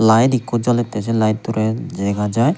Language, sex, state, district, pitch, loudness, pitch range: Chakma, male, Tripura, Unakoti, 115 Hz, -18 LUFS, 110-120 Hz